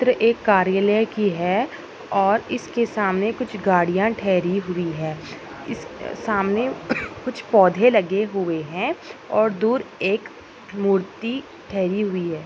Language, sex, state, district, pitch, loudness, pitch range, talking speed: Hindi, female, Maharashtra, Nagpur, 200 Hz, -21 LUFS, 185-225 Hz, 130 wpm